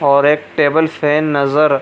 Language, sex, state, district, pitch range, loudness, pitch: Hindi, male, Bihar, Supaul, 140-155 Hz, -14 LUFS, 150 Hz